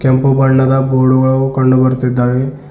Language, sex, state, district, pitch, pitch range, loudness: Kannada, male, Karnataka, Bidar, 130 Hz, 130-135 Hz, -12 LUFS